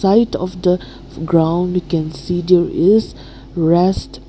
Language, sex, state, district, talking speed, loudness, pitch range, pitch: English, female, Nagaland, Kohima, 140 wpm, -16 LUFS, 160-180 Hz, 175 Hz